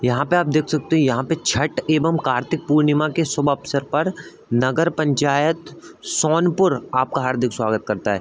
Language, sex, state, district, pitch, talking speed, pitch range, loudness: Hindi, male, Uttar Pradesh, Budaun, 150 Hz, 185 wpm, 130-165 Hz, -20 LUFS